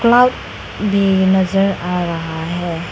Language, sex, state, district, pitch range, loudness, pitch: Hindi, female, Arunachal Pradesh, Lower Dibang Valley, 170-195 Hz, -16 LUFS, 190 Hz